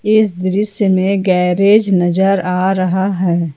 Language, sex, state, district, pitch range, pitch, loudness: Hindi, female, Jharkhand, Ranchi, 180-200 Hz, 190 Hz, -14 LUFS